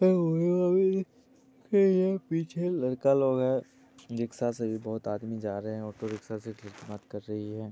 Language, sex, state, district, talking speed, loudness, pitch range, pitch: Maithili, male, Bihar, Supaul, 110 wpm, -29 LUFS, 110-180 Hz, 125 Hz